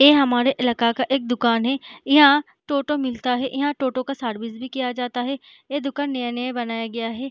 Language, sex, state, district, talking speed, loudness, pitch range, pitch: Hindi, female, Bihar, Jahanabad, 205 wpm, -22 LUFS, 245-275 Hz, 255 Hz